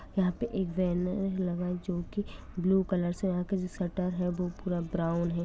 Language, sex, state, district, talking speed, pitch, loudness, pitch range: Hindi, female, Bihar, Sitamarhi, 210 wpm, 180 Hz, -32 LUFS, 175-190 Hz